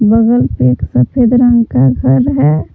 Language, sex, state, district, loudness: Hindi, female, Jharkhand, Palamu, -11 LUFS